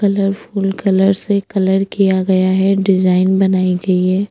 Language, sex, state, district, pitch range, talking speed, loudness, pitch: Hindi, female, Chhattisgarh, Sukma, 185-195 Hz, 155 wpm, -15 LUFS, 195 Hz